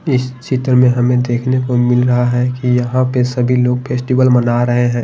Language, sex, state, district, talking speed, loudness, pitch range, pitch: Hindi, male, Bihar, Patna, 215 wpm, -14 LUFS, 125-130 Hz, 125 Hz